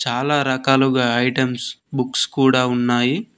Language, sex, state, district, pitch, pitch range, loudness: Telugu, male, Telangana, Mahabubabad, 130 Hz, 125-135 Hz, -18 LUFS